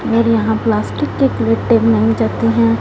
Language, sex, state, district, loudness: Hindi, female, Punjab, Fazilka, -15 LUFS